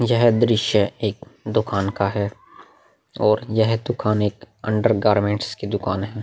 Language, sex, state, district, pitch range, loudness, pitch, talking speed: Hindi, male, Bihar, Vaishali, 100-115 Hz, -21 LUFS, 105 Hz, 145 wpm